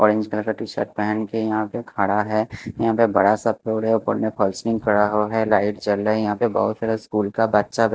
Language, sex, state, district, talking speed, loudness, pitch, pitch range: Hindi, male, Maharashtra, Mumbai Suburban, 255 wpm, -21 LUFS, 110 Hz, 105-110 Hz